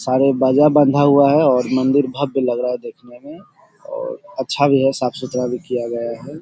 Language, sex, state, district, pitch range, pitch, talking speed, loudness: Hindi, male, Bihar, Sitamarhi, 125-145 Hz, 135 Hz, 215 wpm, -17 LUFS